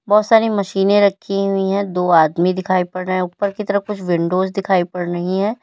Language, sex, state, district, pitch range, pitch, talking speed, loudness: Hindi, female, Uttar Pradesh, Lalitpur, 180-200 Hz, 195 Hz, 225 wpm, -17 LUFS